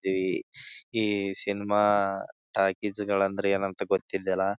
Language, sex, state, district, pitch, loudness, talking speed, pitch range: Kannada, male, Karnataka, Bijapur, 100 Hz, -28 LUFS, 105 wpm, 95-105 Hz